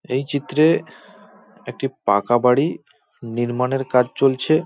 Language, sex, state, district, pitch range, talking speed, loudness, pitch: Bengali, male, West Bengal, Paschim Medinipur, 120-140 Hz, 115 wpm, -19 LUFS, 130 Hz